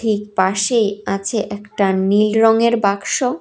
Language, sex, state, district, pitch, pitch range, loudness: Bengali, female, Tripura, West Tripura, 210 Hz, 200-225 Hz, -17 LUFS